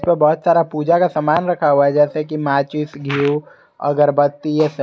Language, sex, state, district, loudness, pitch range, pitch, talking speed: Hindi, male, Jharkhand, Garhwa, -17 LUFS, 145-155 Hz, 150 Hz, 200 wpm